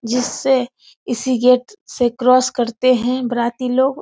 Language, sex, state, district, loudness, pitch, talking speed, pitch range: Hindi, female, Bihar, Samastipur, -17 LUFS, 250 Hz, 135 wpm, 245-260 Hz